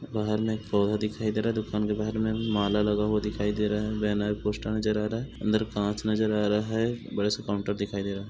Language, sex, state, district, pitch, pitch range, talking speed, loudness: Hindi, male, Goa, North and South Goa, 105 Hz, 105-110 Hz, 275 wpm, -28 LUFS